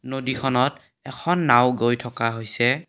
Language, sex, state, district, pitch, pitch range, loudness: Assamese, male, Assam, Kamrup Metropolitan, 125 Hz, 120-135 Hz, -22 LUFS